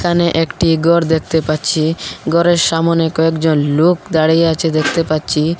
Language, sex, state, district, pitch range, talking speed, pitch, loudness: Bengali, female, Assam, Hailakandi, 155-170 Hz, 140 wpm, 165 Hz, -14 LUFS